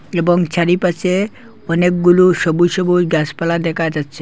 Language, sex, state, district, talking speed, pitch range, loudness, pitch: Bengali, male, Assam, Hailakandi, 130 wpm, 165-180 Hz, -15 LUFS, 175 Hz